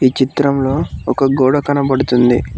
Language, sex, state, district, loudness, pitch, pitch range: Telugu, male, Telangana, Mahabubabad, -14 LUFS, 135 Hz, 130-140 Hz